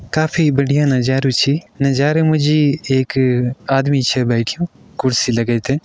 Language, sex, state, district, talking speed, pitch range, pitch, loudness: Kumaoni, male, Uttarakhand, Uttarkashi, 135 wpm, 125-145 Hz, 135 Hz, -16 LUFS